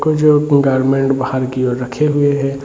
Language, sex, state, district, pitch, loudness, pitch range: Hindi, male, Bihar, Jamui, 135 Hz, -15 LUFS, 130-145 Hz